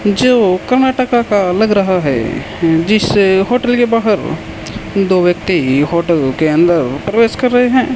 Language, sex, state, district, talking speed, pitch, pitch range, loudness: Hindi, male, Rajasthan, Bikaner, 145 wpm, 195 Hz, 165-240 Hz, -13 LUFS